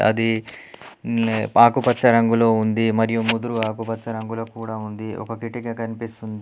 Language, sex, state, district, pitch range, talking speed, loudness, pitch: Telugu, male, Telangana, Adilabad, 110-115 Hz, 130 wpm, -21 LUFS, 115 Hz